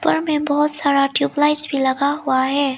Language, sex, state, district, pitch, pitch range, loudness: Hindi, female, Arunachal Pradesh, Lower Dibang Valley, 285 Hz, 275-295 Hz, -17 LUFS